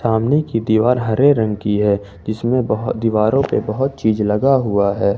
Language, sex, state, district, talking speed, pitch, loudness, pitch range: Hindi, male, Jharkhand, Ranchi, 185 wpm, 110 Hz, -17 LUFS, 105-125 Hz